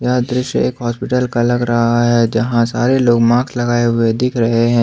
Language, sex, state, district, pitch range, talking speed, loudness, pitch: Hindi, male, Jharkhand, Ranchi, 115-125 Hz, 210 wpm, -15 LUFS, 120 Hz